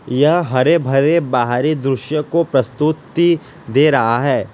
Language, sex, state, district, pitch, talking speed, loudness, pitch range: Hindi, male, Gujarat, Valsad, 145 Hz, 130 wpm, -16 LUFS, 130-160 Hz